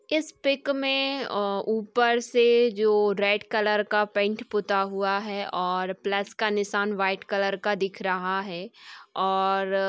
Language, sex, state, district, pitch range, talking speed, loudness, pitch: Hindi, female, Chhattisgarh, Sukma, 195-225 Hz, 160 wpm, -25 LUFS, 205 Hz